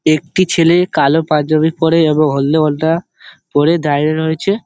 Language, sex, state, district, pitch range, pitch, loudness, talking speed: Bengali, male, West Bengal, Dakshin Dinajpur, 155-165 Hz, 160 Hz, -13 LUFS, 140 wpm